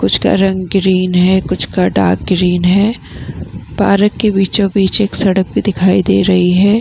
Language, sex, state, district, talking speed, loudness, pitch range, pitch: Hindi, female, Bihar, Vaishali, 200 wpm, -12 LUFS, 180-200 Hz, 190 Hz